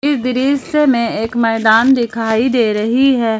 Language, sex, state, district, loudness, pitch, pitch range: Hindi, female, Jharkhand, Ranchi, -14 LUFS, 240 Hz, 225-270 Hz